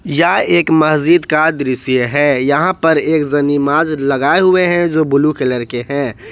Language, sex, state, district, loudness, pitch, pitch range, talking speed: Hindi, male, Jharkhand, Ranchi, -13 LUFS, 150 Hz, 140-165 Hz, 170 wpm